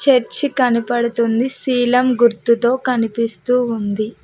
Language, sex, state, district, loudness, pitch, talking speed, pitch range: Telugu, female, Telangana, Mahabubabad, -17 LUFS, 240 Hz, 85 wpm, 230-250 Hz